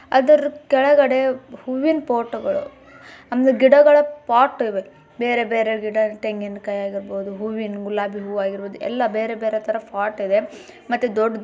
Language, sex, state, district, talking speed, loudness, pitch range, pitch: Kannada, male, Karnataka, Bijapur, 130 wpm, -20 LUFS, 205-275 Hz, 235 Hz